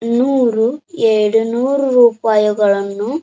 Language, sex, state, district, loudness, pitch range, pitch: Kannada, male, Karnataka, Dharwad, -14 LUFS, 215-255 Hz, 230 Hz